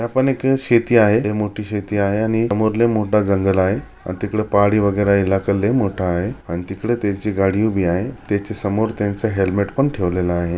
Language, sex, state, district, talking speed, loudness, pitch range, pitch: Marathi, male, Maharashtra, Chandrapur, 205 wpm, -18 LUFS, 95-110 Hz, 105 Hz